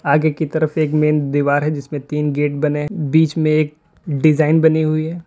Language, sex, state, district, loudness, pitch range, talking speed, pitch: Hindi, male, Uttar Pradesh, Lalitpur, -17 LUFS, 150-155 Hz, 215 wpm, 155 Hz